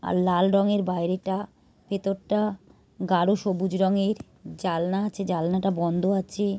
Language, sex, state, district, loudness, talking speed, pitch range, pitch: Bengali, female, West Bengal, Dakshin Dinajpur, -25 LUFS, 125 wpm, 180-200 Hz, 195 Hz